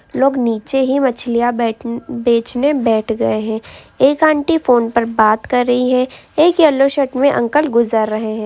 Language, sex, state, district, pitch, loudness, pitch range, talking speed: Hindi, female, Uttar Pradesh, Hamirpur, 245 Hz, -15 LUFS, 230-275 Hz, 185 wpm